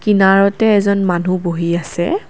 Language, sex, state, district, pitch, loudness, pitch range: Assamese, female, Assam, Kamrup Metropolitan, 190 Hz, -14 LUFS, 175-200 Hz